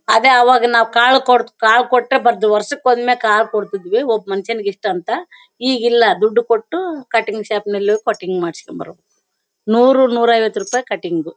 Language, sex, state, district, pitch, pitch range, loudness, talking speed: Kannada, female, Karnataka, Bellary, 230 Hz, 210-250 Hz, -15 LUFS, 160 wpm